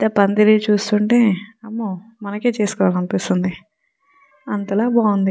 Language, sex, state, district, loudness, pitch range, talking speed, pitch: Telugu, female, Telangana, Nalgonda, -18 LUFS, 200-230 Hz, 115 wpm, 210 Hz